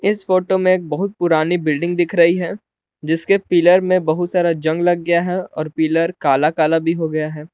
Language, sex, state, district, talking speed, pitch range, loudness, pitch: Hindi, male, Jharkhand, Palamu, 215 wpm, 160-180 Hz, -17 LUFS, 170 Hz